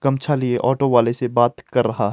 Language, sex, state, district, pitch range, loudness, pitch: Hindi, male, Himachal Pradesh, Shimla, 120-135 Hz, -19 LUFS, 125 Hz